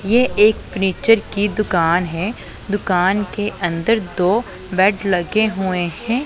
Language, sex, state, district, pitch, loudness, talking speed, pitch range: Hindi, female, Punjab, Pathankot, 200 Hz, -18 LUFS, 135 wpm, 180-215 Hz